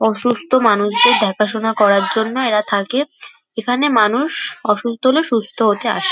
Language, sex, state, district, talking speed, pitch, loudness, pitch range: Bengali, female, West Bengal, Kolkata, 135 wpm, 230 Hz, -16 LUFS, 215-260 Hz